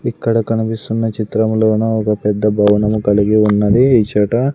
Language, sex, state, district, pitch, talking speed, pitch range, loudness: Telugu, male, Andhra Pradesh, Sri Satya Sai, 110 Hz, 120 wpm, 105-115 Hz, -14 LUFS